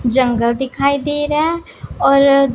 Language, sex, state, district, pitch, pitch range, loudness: Hindi, female, Punjab, Pathankot, 275 Hz, 255-295 Hz, -15 LUFS